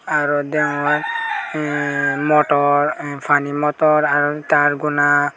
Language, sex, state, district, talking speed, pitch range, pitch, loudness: Chakma, male, Tripura, Dhalai, 100 wpm, 145-150 Hz, 145 Hz, -17 LUFS